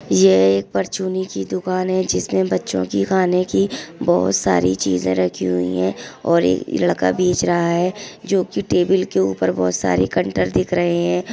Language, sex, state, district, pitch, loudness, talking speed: Hindi, female, Maharashtra, Aurangabad, 95 Hz, -18 LUFS, 175 wpm